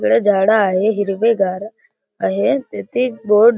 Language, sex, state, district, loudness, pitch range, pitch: Marathi, male, Maharashtra, Chandrapur, -16 LUFS, 200-235 Hz, 215 Hz